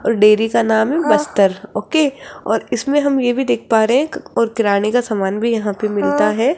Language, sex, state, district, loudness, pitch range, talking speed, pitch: Hindi, female, Rajasthan, Jaipur, -16 LUFS, 210-275 Hz, 235 wpm, 230 Hz